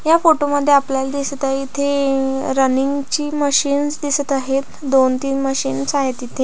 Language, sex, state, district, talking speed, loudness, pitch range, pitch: Marathi, female, Maharashtra, Pune, 160 wpm, -18 LUFS, 270-285 Hz, 275 Hz